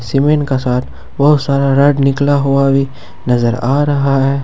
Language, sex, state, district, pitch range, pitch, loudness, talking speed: Hindi, male, Jharkhand, Ranchi, 130-140 Hz, 140 Hz, -13 LUFS, 175 wpm